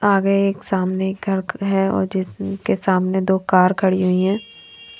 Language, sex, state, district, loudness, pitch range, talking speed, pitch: Hindi, female, Haryana, Charkhi Dadri, -19 LUFS, 185-195 Hz, 145 wpm, 190 Hz